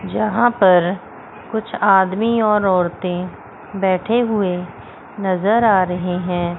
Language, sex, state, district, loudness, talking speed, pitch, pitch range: Hindi, female, Chandigarh, Chandigarh, -17 LUFS, 110 wpm, 190 Hz, 180-215 Hz